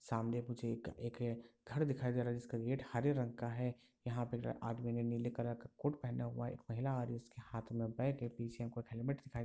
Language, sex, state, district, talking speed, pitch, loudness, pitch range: Hindi, male, Bihar, Sitamarhi, 235 wpm, 120 Hz, -42 LUFS, 115-125 Hz